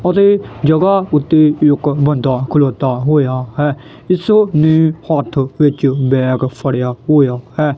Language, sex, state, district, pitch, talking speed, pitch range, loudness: Punjabi, male, Punjab, Kapurthala, 145 Hz, 110 wpm, 130-155 Hz, -13 LUFS